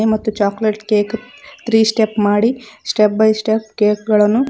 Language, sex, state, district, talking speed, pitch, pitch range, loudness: Kannada, female, Karnataka, Koppal, 145 wpm, 220 Hz, 210-225 Hz, -16 LUFS